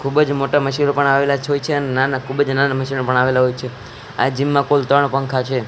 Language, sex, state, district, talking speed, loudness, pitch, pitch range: Gujarati, male, Gujarat, Gandhinagar, 245 wpm, -17 LUFS, 135 Hz, 130-140 Hz